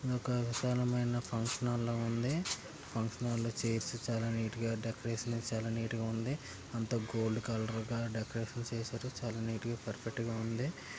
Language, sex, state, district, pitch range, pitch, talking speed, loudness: Telugu, male, Andhra Pradesh, Krishna, 115-120 Hz, 115 Hz, 140 wpm, -37 LUFS